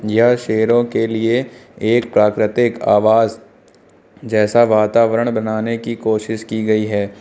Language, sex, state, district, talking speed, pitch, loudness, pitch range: Hindi, male, Uttar Pradesh, Lucknow, 125 wpm, 110 Hz, -16 LUFS, 110-115 Hz